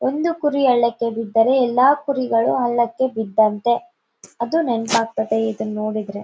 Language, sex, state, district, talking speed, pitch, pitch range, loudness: Kannada, female, Karnataka, Bellary, 135 wpm, 235 Hz, 220-260 Hz, -19 LUFS